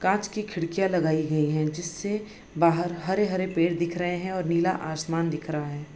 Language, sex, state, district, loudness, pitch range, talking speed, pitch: Hindi, female, Bihar, Bhagalpur, -27 LUFS, 155-185 Hz, 200 wpm, 170 Hz